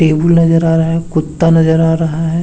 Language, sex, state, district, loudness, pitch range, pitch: Hindi, male, Jharkhand, Sahebganj, -12 LUFS, 160-165 Hz, 165 Hz